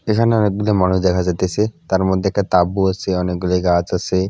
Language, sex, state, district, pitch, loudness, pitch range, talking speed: Bengali, male, West Bengal, Purulia, 95 Hz, -17 LUFS, 90-100 Hz, 180 wpm